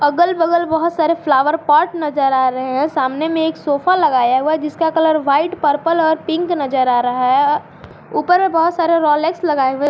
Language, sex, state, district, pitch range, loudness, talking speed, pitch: Hindi, female, Jharkhand, Garhwa, 280-330 Hz, -16 LUFS, 200 wpm, 310 Hz